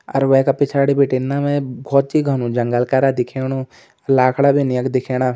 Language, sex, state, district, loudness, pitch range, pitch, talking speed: Garhwali, male, Uttarakhand, Uttarkashi, -17 LUFS, 130-140 Hz, 135 Hz, 180 wpm